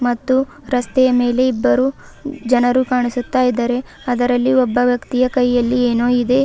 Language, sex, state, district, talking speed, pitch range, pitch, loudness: Kannada, female, Karnataka, Bidar, 120 wpm, 245-260 Hz, 250 Hz, -16 LUFS